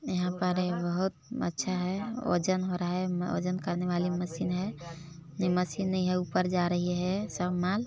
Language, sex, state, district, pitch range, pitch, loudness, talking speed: Hindi, female, Chhattisgarh, Balrampur, 175-185 Hz, 180 Hz, -31 LUFS, 190 wpm